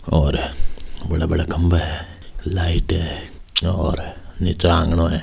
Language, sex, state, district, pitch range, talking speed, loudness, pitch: Hindi, male, Rajasthan, Nagaur, 80-90 Hz, 125 wpm, -21 LUFS, 85 Hz